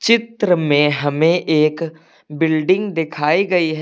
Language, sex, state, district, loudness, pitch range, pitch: Hindi, male, Uttar Pradesh, Lucknow, -17 LUFS, 150-185 Hz, 160 Hz